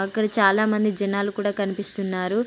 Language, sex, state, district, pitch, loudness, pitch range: Telugu, female, Telangana, Nalgonda, 205 Hz, -23 LUFS, 195-215 Hz